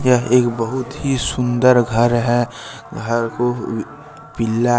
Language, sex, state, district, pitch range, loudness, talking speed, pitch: Hindi, male, Jharkhand, Deoghar, 120-125 Hz, -18 LUFS, 125 wpm, 120 Hz